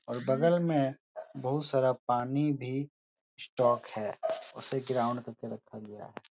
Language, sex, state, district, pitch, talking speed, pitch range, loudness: Hindi, male, Uttar Pradesh, Etah, 130 Hz, 135 wpm, 120-145 Hz, -31 LUFS